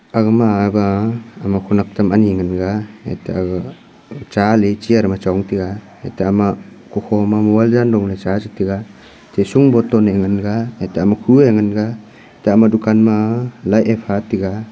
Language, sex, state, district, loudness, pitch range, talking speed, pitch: Wancho, male, Arunachal Pradesh, Longding, -15 LUFS, 100-110 Hz, 170 wpm, 105 Hz